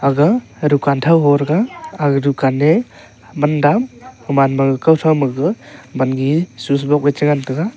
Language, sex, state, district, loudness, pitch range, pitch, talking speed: Wancho, male, Arunachal Pradesh, Longding, -15 LUFS, 140-160 Hz, 145 Hz, 185 wpm